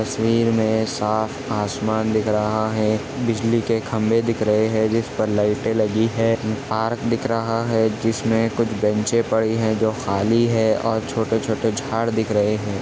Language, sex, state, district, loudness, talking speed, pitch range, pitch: Hindi, male, Chhattisgarh, Balrampur, -21 LUFS, 175 wpm, 110-115 Hz, 110 Hz